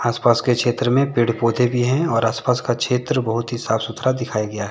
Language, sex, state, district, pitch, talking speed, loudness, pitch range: Hindi, male, Jharkhand, Deoghar, 120 Hz, 265 wpm, -19 LUFS, 115-125 Hz